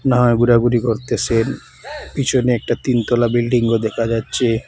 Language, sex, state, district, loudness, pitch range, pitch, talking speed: Bengali, male, Assam, Hailakandi, -17 LUFS, 115-125 Hz, 120 Hz, 115 wpm